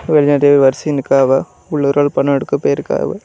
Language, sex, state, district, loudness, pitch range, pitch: Tamil, male, Tamil Nadu, Kanyakumari, -14 LUFS, 135-145 Hz, 140 Hz